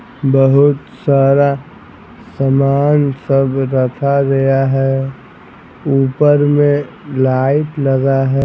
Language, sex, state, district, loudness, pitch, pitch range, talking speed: Hindi, male, Bihar, Patna, -13 LUFS, 135 Hz, 135-140 Hz, 85 wpm